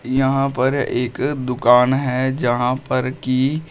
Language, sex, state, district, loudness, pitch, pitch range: Hindi, male, Uttar Pradesh, Shamli, -18 LUFS, 130 Hz, 125-135 Hz